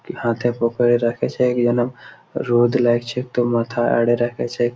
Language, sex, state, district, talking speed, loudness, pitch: Bengali, male, West Bengal, Malda, 140 wpm, -19 LUFS, 120 Hz